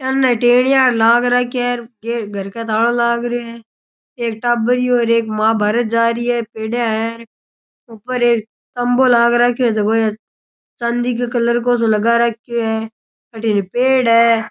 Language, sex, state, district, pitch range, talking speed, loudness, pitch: Rajasthani, male, Rajasthan, Churu, 225-245 Hz, 175 wpm, -16 LUFS, 235 Hz